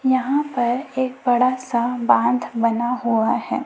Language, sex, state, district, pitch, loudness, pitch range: Hindi, female, Chhattisgarh, Raipur, 250 Hz, -20 LUFS, 235-260 Hz